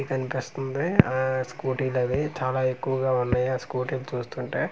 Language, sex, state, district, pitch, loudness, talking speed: Telugu, male, Andhra Pradesh, Manyam, 130 Hz, -26 LUFS, 125 wpm